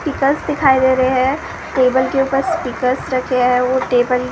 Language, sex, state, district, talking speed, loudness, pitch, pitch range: Hindi, female, Maharashtra, Gondia, 195 wpm, -16 LUFS, 260 Hz, 250-270 Hz